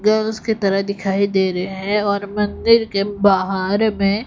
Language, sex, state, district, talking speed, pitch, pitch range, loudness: Hindi, female, Odisha, Khordha, 170 wpm, 200 Hz, 195-210 Hz, -18 LUFS